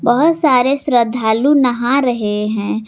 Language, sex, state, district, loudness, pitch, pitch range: Hindi, female, Jharkhand, Garhwa, -14 LUFS, 245 Hz, 220-275 Hz